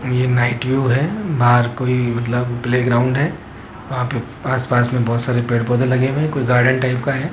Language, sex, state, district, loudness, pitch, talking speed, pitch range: Hindi, male, Rajasthan, Jaipur, -18 LUFS, 125 Hz, 215 wpm, 120-130 Hz